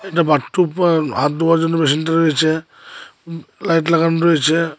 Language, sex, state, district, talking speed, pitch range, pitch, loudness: Bengali, male, Tripura, Unakoti, 140 wpm, 155-170 Hz, 165 Hz, -16 LUFS